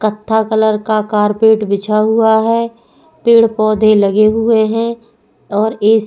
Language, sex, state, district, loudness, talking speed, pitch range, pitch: Hindi, female, Goa, North and South Goa, -13 LUFS, 150 wpm, 215-225 Hz, 220 Hz